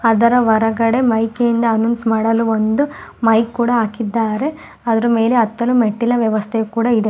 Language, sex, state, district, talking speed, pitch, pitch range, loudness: Kannada, female, Karnataka, Mysore, 145 wpm, 230 Hz, 225-235 Hz, -16 LUFS